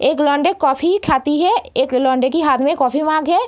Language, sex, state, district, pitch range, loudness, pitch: Hindi, female, Bihar, East Champaran, 265-335 Hz, -16 LUFS, 295 Hz